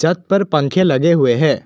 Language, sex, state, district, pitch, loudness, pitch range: Hindi, male, Assam, Kamrup Metropolitan, 170 Hz, -15 LUFS, 155-185 Hz